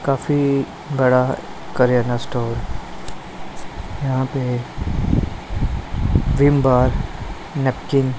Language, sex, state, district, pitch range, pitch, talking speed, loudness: Hindi, male, Punjab, Pathankot, 125-140 Hz, 130 Hz, 75 wpm, -20 LUFS